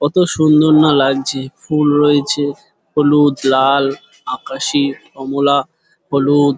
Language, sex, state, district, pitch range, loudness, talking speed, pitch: Bengali, male, West Bengal, Dakshin Dinajpur, 140-150 Hz, -14 LUFS, 100 wpm, 145 Hz